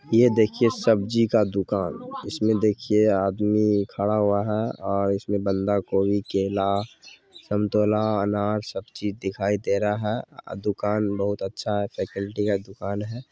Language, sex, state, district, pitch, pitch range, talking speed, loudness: Maithili, male, Bihar, Supaul, 105 Hz, 100-105 Hz, 145 wpm, -24 LUFS